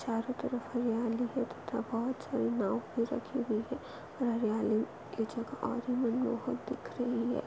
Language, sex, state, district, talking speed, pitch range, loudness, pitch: Hindi, female, Goa, North and South Goa, 150 wpm, 230-250 Hz, -35 LUFS, 240 Hz